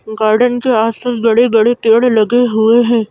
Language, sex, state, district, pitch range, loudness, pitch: Hindi, female, Madhya Pradesh, Bhopal, 220-245 Hz, -12 LUFS, 230 Hz